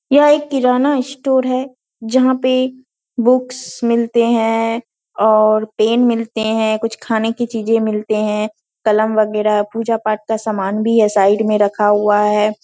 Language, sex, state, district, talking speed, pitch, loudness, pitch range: Hindi, female, Bihar, Purnia, 155 wpm, 225 Hz, -15 LUFS, 215-250 Hz